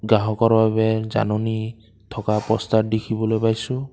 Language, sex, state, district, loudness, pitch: Assamese, male, Assam, Kamrup Metropolitan, -21 LUFS, 110 Hz